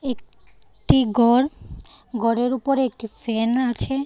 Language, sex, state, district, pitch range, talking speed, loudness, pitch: Bengali, female, Tripura, West Tripura, 230-260 Hz, 120 wpm, -21 LUFS, 245 Hz